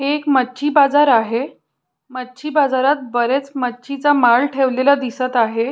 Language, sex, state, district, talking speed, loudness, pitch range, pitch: Marathi, female, Maharashtra, Pune, 135 wpm, -16 LUFS, 250-280 Hz, 265 Hz